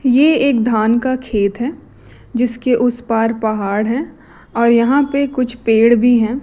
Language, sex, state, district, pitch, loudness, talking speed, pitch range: Hindi, female, Chhattisgarh, Raipur, 240 Hz, -15 LUFS, 170 wpm, 225-255 Hz